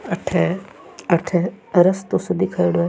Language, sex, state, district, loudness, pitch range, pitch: Rajasthani, female, Rajasthan, Churu, -20 LUFS, 165-190 Hz, 175 Hz